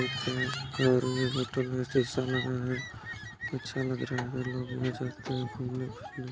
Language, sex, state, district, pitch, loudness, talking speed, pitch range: Hindi, female, Chhattisgarh, Balrampur, 125 Hz, -32 LUFS, 85 wpm, 125-130 Hz